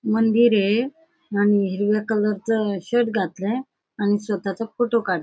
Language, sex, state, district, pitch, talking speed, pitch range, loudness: Marathi, female, Maharashtra, Aurangabad, 215 Hz, 125 wpm, 205-235 Hz, -22 LUFS